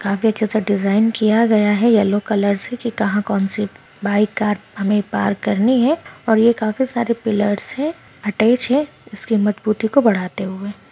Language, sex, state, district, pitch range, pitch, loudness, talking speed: Hindi, female, Maharashtra, Pune, 205-230 Hz, 215 Hz, -18 LUFS, 175 wpm